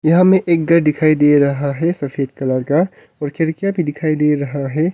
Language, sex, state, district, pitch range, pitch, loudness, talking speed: Hindi, male, Arunachal Pradesh, Longding, 140-165 Hz, 150 Hz, -16 LUFS, 220 wpm